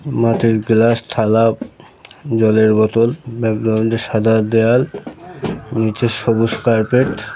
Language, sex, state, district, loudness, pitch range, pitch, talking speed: Bengali, male, West Bengal, North 24 Parganas, -15 LUFS, 110-115 Hz, 115 Hz, 115 wpm